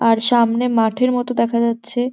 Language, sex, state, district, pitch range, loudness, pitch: Bengali, female, West Bengal, Jhargram, 230-245 Hz, -17 LUFS, 235 Hz